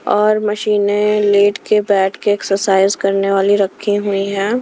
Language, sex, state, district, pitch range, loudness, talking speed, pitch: Hindi, female, Himachal Pradesh, Shimla, 195-210 Hz, -15 LUFS, 155 wpm, 205 Hz